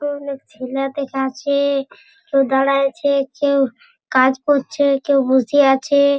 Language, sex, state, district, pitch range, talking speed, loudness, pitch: Bengali, male, West Bengal, Purulia, 270-280 Hz, 115 wpm, -17 LUFS, 275 Hz